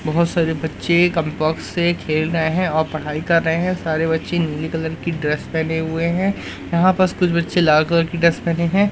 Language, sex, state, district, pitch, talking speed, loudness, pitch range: Hindi, male, Madhya Pradesh, Umaria, 165 Hz, 220 wpm, -19 LUFS, 160-170 Hz